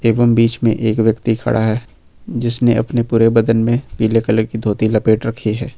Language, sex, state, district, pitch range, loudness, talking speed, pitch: Hindi, male, Jharkhand, Ranchi, 110-115 Hz, -15 LUFS, 195 wpm, 115 Hz